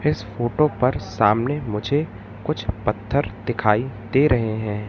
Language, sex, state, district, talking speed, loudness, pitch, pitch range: Hindi, male, Madhya Pradesh, Katni, 135 wpm, -22 LUFS, 115 Hz, 105-140 Hz